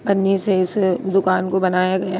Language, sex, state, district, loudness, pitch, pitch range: Hindi, female, Bihar, Lakhisarai, -18 LUFS, 190 Hz, 185-195 Hz